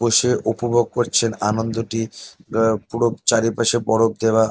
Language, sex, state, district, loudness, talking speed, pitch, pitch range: Bengali, male, West Bengal, North 24 Parganas, -19 LUFS, 120 wpm, 115 Hz, 110-120 Hz